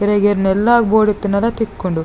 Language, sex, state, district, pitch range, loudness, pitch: Tulu, female, Karnataka, Dakshina Kannada, 200-220 Hz, -15 LUFS, 205 Hz